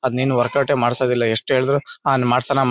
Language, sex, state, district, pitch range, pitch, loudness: Kannada, male, Karnataka, Bellary, 125-135 Hz, 130 Hz, -18 LUFS